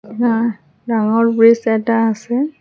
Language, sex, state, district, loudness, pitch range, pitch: Assamese, female, Assam, Hailakandi, -15 LUFS, 220-235 Hz, 230 Hz